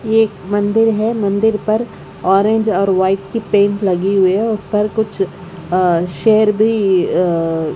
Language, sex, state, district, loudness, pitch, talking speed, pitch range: Hindi, female, Odisha, Khordha, -15 LUFS, 205 Hz, 160 wpm, 185-220 Hz